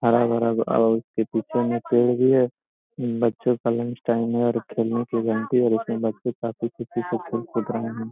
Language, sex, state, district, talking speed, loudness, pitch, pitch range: Hindi, male, Bihar, Gopalganj, 200 wpm, -23 LUFS, 115 Hz, 115-120 Hz